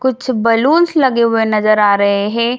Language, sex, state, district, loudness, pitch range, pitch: Hindi, female, Bihar, Jamui, -13 LUFS, 215-260 Hz, 230 Hz